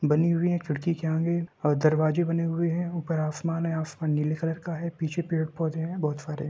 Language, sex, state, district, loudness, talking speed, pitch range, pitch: Hindi, male, Bihar, Samastipur, -27 LUFS, 220 wpm, 155-170 Hz, 165 Hz